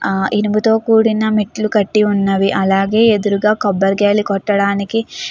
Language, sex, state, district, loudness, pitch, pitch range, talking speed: Telugu, female, Andhra Pradesh, Chittoor, -14 LUFS, 210 Hz, 200-220 Hz, 125 wpm